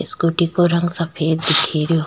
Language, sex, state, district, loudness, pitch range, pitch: Rajasthani, female, Rajasthan, Churu, -16 LUFS, 160-170 Hz, 165 Hz